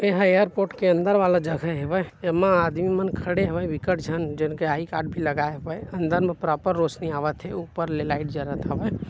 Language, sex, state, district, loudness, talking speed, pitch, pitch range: Chhattisgarhi, male, Chhattisgarh, Bilaspur, -24 LUFS, 205 wpm, 170 Hz, 155-185 Hz